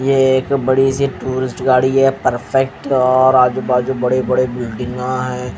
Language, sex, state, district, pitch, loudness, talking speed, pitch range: Hindi, male, Haryana, Jhajjar, 130 Hz, -15 LUFS, 160 wpm, 125-130 Hz